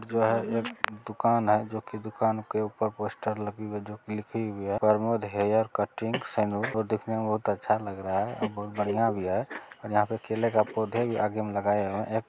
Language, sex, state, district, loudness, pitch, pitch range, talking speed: Maithili, male, Bihar, Begusarai, -29 LUFS, 110 Hz, 105-110 Hz, 235 wpm